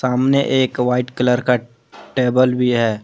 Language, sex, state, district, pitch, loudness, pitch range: Hindi, male, Jharkhand, Deoghar, 125 Hz, -17 LUFS, 125-130 Hz